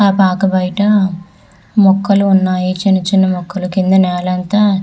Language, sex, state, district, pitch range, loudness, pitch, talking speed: Telugu, female, Andhra Pradesh, Visakhapatnam, 185-195 Hz, -13 LUFS, 190 Hz, 160 wpm